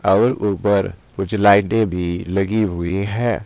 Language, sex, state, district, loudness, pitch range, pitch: Hindi, male, Uttar Pradesh, Saharanpur, -18 LUFS, 95-105 Hz, 100 Hz